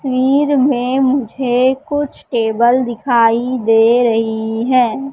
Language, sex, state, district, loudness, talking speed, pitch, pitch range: Hindi, female, Madhya Pradesh, Katni, -14 LUFS, 105 wpm, 250 Hz, 230-265 Hz